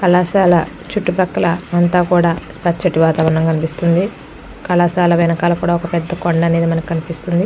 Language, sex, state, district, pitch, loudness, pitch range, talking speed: Telugu, female, Andhra Pradesh, Krishna, 175 Hz, -15 LUFS, 165-180 Hz, 145 wpm